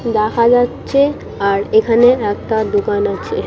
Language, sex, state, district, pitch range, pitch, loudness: Bengali, female, West Bengal, Purulia, 215-275 Hz, 235 Hz, -15 LUFS